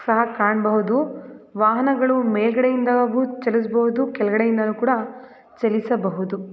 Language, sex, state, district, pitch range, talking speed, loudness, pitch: Kannada, female, Karnataka, Belgaum, 215-255 Hz, 90 wpm, -20 LUFS, 235 Hz